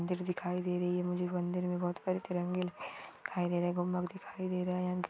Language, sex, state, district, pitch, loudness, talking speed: Marwari, female, Rajasthan, Churu, 180 Hz, -36 LUFS, 225 wpm